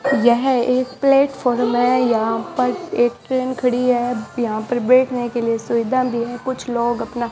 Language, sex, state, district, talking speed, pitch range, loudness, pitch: Hindi, male, Rajasthan, Bikaner, 180 wpm, 235-255 Hz, -19 LUFS, 245 Hz